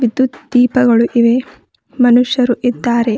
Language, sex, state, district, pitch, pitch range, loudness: Kannada, female, Karnataka, Bidar, 245 Hz, 235-250 Hz, -13 LUFS